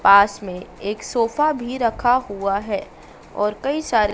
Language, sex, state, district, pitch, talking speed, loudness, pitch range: Hindi, female, Madhya Pradesh, Dhar, 210 Hz, 160 wpm, -21 LUFS, 200-245 Hz